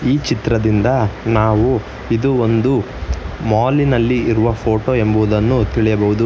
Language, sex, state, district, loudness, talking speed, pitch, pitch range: Kannada, male, Karnataka, Bangalore, -16 LUFS, 95 wpm, 115 Hz, 110-125 Hz